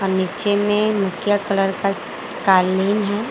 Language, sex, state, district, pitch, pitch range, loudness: Hindi, female, Jharkhand, Garhwa, 200 Hz, 190-205 Hz, -19 LUFS